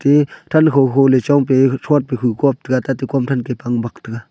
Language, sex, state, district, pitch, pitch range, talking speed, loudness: Wancho, male, Arunachal Pradesh, Longding, 135 Hz, 125-140 Hz, 195 wpm, -16 LUFS